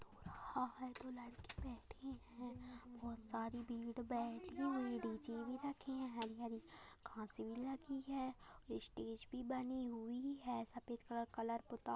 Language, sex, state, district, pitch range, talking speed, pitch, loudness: Hindi, female, Uttar Pradesh, Jyotiba Phule Nagar, 230-255 Hz, 155 wpm, 240 Hz, -47 LUFS